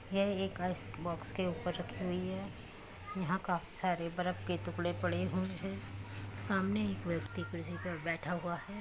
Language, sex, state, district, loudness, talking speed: Hindi, female, Uttar Pradesh, Muzaffarnagar, -38 LUFS, 175 wpm